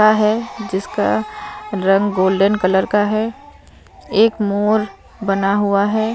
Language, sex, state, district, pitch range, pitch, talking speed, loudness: Hindi, female, Punjab, Fazilka, 195-215 Hz, 205 Hz, 115 wpm, -17 LUFS